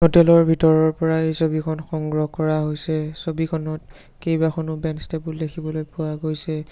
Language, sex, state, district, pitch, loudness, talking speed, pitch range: Assamese, male, Assam, Sonitpur, 160 Hz, -21 LUFS, 145 wpm, 155-160 Hz